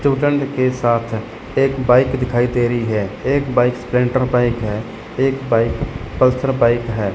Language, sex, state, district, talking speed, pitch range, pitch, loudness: Hindi, male, Chandigarh, Chandigarh, 160 wpm, 115-130 Hz, 125 Hz, -18 LUFS